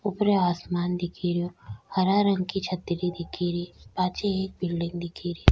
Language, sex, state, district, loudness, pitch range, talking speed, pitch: Rajasthani, female, Rajasthan, Nagaur, -27 LUFS, 175-190 Hz, 165 wpm, 180 Hz